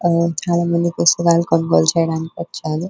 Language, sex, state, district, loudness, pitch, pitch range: Telugu, female, Telangana, Nalgonda, -17 LUFS, 170 Hz, 155-170 Hz